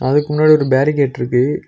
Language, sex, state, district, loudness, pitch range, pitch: Tamil, male, Tamil Nadu, Nilgiris, -14 LUFS, 130-150 Hz, 140 Hz